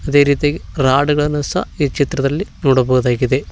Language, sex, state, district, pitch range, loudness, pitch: Kannada, male, Karnataka, Koppal, 130-145 Hz, -16 LUFS, 140 Hz